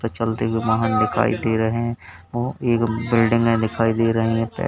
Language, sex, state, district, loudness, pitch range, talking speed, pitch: Hindi, male, Uttar Pradesh, Lalitpur, -20 LUFS, 110-115 Hz, 190 wpm, 115 Hz